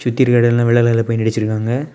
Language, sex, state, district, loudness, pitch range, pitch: Tamil, male, Tamil Nadu, Kanyakumari, -15 LUFS, 115-120 Hz, 120 Hz